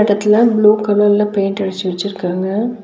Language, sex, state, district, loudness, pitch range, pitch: Tamil, female, Tamil Nadu, Nilgiris, -15 LUFS, 195-210 Hz, 205 Hz